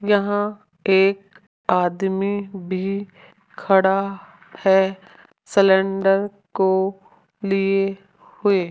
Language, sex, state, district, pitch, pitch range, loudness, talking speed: Hindi, female, Rajasthan, Jaipur, 195 Hz, 190-200 Hz, -20 LUFS, 75 wpm